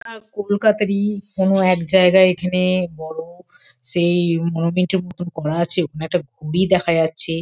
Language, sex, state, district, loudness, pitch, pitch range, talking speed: Bengali, female, West Bengal, Kolkata, -18 LUFS, 180 Hz, 165-190 Hz, 130 wpm